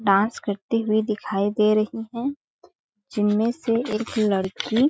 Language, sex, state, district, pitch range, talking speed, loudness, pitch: Hindi, female, Chhattisgarh, Balrampur, 205-230 Hz, 145 wpm, -23 LUFS, 215 Hz